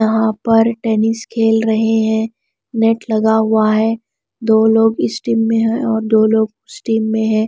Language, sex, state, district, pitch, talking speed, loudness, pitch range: Hindi, female, Bihar, Kaimur, 225 Hz, 185 wpm, -15 LUFS, 220-225 Hz